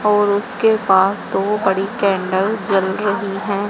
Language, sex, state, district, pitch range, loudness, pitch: Hindi, female, Haryana, Charkhi Dadri, 195-210 Hz, -17 LUFS, 200 Hz